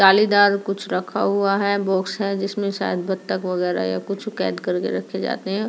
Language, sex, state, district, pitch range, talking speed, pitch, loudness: Hindi, female, Delhi, New Delhi, 185-200 Hz, 190 wpm, 195 Hz, -21 LUFS